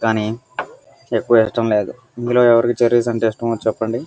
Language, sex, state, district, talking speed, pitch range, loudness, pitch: Telugu, male, Andhra Pradesh, Guntur, 145 wpm, 110-120 Hz, -17 LUFS, 115 Hz